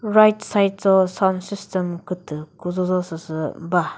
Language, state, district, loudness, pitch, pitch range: Chakhesang, Nagaland, Dimapur, -21 LUFS, 185 Hz, 170-195 Hz